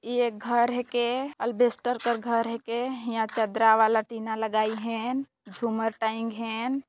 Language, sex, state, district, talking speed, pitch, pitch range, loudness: Sadri, female, Chhattisgarh, Jashpur, 155 wpm, 230 Hz, 225-245 Hz, -27 LUFS